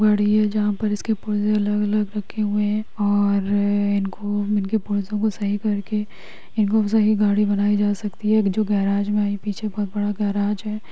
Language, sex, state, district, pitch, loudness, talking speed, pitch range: Magahi, female, Bihar, Gaya, 210 Hz, -21 LUFS, 160 wpm, 205-210 Hz